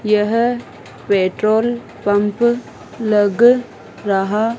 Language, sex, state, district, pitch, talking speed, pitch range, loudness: Hindi, female, Madhya Pradesh, Dhar, 215 Hz, 65 wpm, 205-235 Hz, -17 LUFS